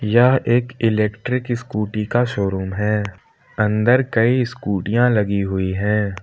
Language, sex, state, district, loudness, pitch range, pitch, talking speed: Hindi, male, Jharkhand, Palamu, -19 LUFS, 100-120 Hz, 105 Hz, 125 wpm